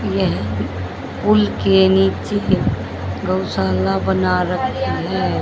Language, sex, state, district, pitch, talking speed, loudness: Hindi, female, Haryana, Jhajjar, 95 Hz, 90 wpm, -18 LUFS